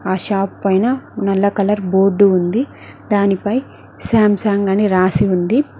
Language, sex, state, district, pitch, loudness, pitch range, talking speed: Telugu, female, Telangana, Mahabubabad, 200 Hz, -16 LUFS, 195-210 Hz, 125 wpm